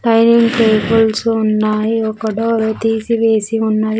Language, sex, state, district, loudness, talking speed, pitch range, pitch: Telugu, female, Andhra Pradesh, Sri Satya Sai, -14 LUFS, 120 wpm, 220-230 Hz, 225 Hz